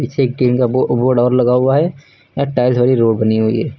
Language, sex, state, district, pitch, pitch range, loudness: Hindi, male, Uttar Pradesh, Lucknow, 125 Hz, 120-135 Hz, -14 LUFS